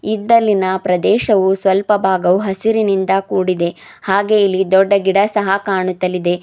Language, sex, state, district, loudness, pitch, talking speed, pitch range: Kannada, female, Karnataka, Bidar, -15 LUFS, 195 Hz, 110 wpm, 190-205 Hz